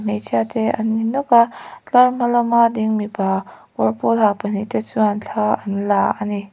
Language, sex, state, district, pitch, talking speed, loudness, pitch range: Mizo, female, Mizoram, Aizawl, 210 Hz, 195 wpm, -18 LUFS, 200-230 Hz